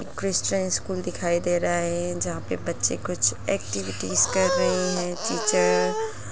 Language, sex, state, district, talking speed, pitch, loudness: Hindi, female, Bihar, Lakhisarai, 150 wpm, 175 Hz, -24 LUFS